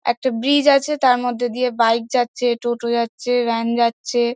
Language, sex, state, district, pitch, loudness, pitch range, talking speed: Bengali, female, West Bengal, Dakshin Dinajpur, 240 Hz, -19 LUFS, 235-250 Hz, 165 wpm